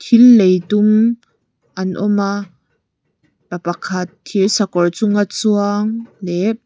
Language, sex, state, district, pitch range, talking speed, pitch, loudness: Mizo, female, Mizoram, Aizawl, 185-215 Hz, 110 wpm, 205 Hz, -15 LUFS